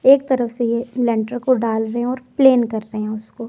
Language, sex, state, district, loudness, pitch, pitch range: Hindi, female, Himachal Pradesh, Shimla, -19 LUFS, 240 Hz, 225-255 Hz